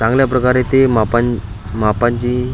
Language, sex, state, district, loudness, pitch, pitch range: Marathi, male, Maharashtra, Washim, -15 LUFS, 120 Hz, 110-125 Hz